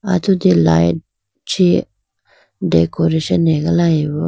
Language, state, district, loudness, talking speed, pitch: Idu Mishmi, Arunachal Pradesh, Lower Dibang Valley, -15 LUFS, 70 wpm, 160 Hz